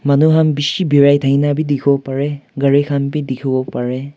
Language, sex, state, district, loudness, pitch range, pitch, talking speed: Nagamese, male, Nagaland, Kohima, -15 LUFS, 135-145 Hz, 140 Hz, 215 wpm